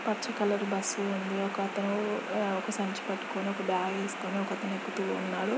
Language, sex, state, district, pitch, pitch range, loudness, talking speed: Telugu, female, Andhra Pradesh, Guntur, 200 Hz, 195-205 Hz, -32 LUFS, 170 wpm